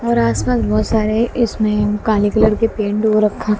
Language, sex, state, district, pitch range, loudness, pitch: Hindi, female, Haryana, Jhajjar, 185-220 Hz, -16 LUFS, 210 Hz